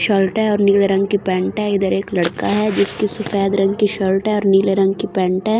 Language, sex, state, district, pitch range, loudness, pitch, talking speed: Hindi, female, Delhi, New Delhi, 195-210 Hz, -17 LUFS, 200 Hz, 255 wpm